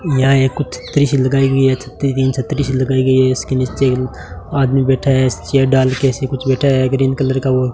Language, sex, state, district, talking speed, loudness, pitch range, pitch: Hindi, male, Rajasthan, Bikaner, 250 wpm, -15 LUFS, 130-135 Hz, 130 Hz